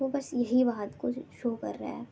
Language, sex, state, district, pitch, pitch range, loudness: Hindi, female, West Bengal, Jalpaiguri, 250 Hz, 240-270 Hz, -31 LUFS